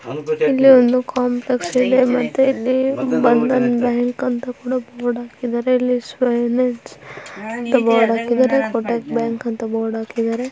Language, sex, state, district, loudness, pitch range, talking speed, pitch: Kannada, female, Karnataka, Dharwad, -18 LUFS, 235-255 Hz, 70 wpm, 245 Hz